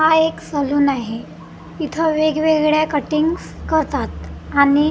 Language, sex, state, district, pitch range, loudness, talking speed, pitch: Marathi, female, Maharashtra, Gondia, 285-315 Hz, -18 LUFS, 110 wpm, 305 Hz